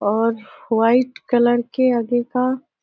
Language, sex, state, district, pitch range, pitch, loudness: Hindi, female, Uttar Pradesh, Deoria, 230-255 Hz, 240 Hz, -19 LUFS